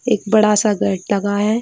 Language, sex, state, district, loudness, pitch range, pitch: Hindi, female, Bihar, Jahanabad, -16 LUFS, 200-215 Hz, 210 Hz